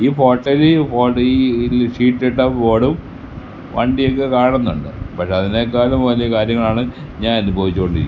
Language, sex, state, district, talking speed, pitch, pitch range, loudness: Malayalam, male, Kerala, Kasaragod, 105 wpm, 120 Hz, 110-130 Hz, -16 LUFS